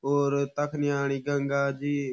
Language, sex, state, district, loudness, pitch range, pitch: Garhwali, male, Uttarakhand, Uttarkashi, -28 LUFS, 140-145 Hz, 140 Hz